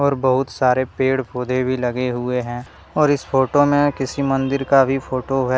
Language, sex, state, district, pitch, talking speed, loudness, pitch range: Hindi, male, Jharkhand, Deoghar, 130 Hz, 205 wpm, -19 LUFS, 125-135 Hz